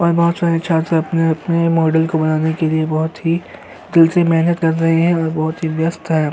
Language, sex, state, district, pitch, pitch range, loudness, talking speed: Hindi, male, Uttar Pradesh, Hamirpur, 165 Hz, 160-170 Hz, -16 LUFS, 220 wpm